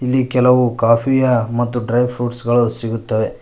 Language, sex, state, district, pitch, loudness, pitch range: Kannada, male, Karnataka, Koppal, 120 Hz, -16 LUFS, 115-125 Hz